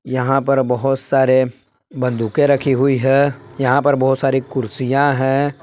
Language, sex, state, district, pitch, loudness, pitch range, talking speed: Hindi, male, Jharkhand, Palamu, 135 Hz, -17 LUFS, 130-140 Hz, 150 wpm